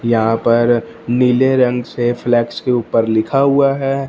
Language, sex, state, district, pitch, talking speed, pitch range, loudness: Hindi, male, Punjab, Fazilka, 120 Hz, 160 wpm, 115-130 Hz, -15 LUFS